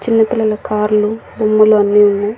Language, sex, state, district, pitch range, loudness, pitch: Telugu, female, Andhra Pradesh, Annamaya, 210-220 Hz, -13 LUFS, 215 Hz